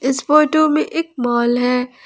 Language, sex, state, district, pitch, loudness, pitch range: Hindi, female, Jharkhand, Ranchi, 265 Hz, -16 LUFS, 250-310 Hz